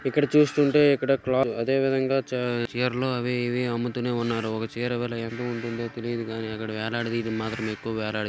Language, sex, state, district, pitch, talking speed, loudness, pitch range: Telugu, male, Andhra Pradesh, Chittoor, 120 Hz, 150 wpm, -26 LUFS, 115-130 Hz